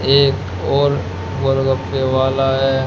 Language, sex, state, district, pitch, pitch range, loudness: Hindi, male, Haryana, Charkhi Dadri, 135 Hz, 130-135 Hz, -17 LUFS